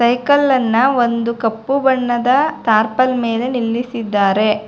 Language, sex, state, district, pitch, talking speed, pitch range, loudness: Kannada, female, Karnataka, Bangalore, 240 Hz, 90 wpm, 225-255 Hz, -15 LUFS